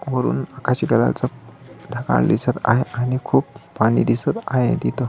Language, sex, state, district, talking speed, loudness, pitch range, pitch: Marathi, male, Maharashtra, Solapur, 140 wpm, -20 LUFS, 125-130 Hz, 125 Hz